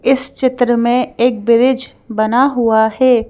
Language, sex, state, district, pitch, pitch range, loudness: Hindi, female, Madhya Pradesh, Bhopal, 245 Hz, 230-255 Hz, -14 LUFS